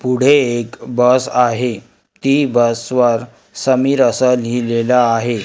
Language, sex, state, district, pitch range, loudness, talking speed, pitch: Marathi, male, Maharashtra, Gondia, 120-130 Hz, -15 LUFS, 120 wpm, 125 Hz